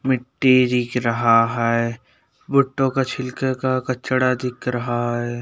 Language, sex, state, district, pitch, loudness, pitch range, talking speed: Hindi, male, Uttarakhand, Uttarkashi, 125 Hz, -20 LUFS, 120-130 Hz, 135 wpm